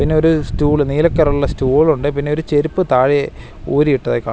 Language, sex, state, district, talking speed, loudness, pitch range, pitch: Malayalam, male, Kerala, Wayanad, 195 wpm, -15 LUFS, 140-155 Hz, 145 Hz